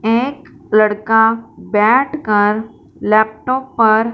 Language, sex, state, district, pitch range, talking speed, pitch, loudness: Hindi, female, Punjab, Fazilka, 215-250 Hz, 70 wpm, 225 Hz, -15 LUFS